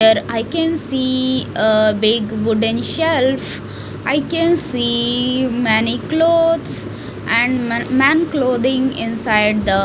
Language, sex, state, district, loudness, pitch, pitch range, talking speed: English, female, Punjab, Fazilka, -16 LUFS, 250 Hz, 225-275 Hz, 120 wpm